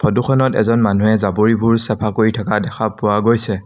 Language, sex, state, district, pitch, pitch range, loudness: Assamese, male, Assam, Sonitpur, 110 Hz, 105-115 Hz, -16 LUFS